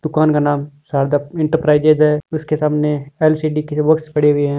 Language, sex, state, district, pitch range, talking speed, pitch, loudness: Hindi, male, Rajasthan, Churu, 145-155 Hz, 185 wpm, 150 Hz, -16 LUFS